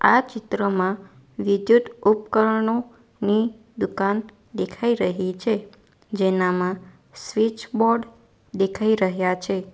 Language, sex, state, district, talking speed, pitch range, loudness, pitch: Gujarati, female, Gujarat, Valsad, 90 wpm, 190-225 Hz, -22 LUFS, 210 Hz